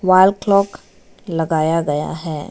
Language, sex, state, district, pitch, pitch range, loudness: Hindi, female, Arunachal Pradesh, Lower Dibang Valley, 165 Hz, 160-195 Hz, -17 LUFS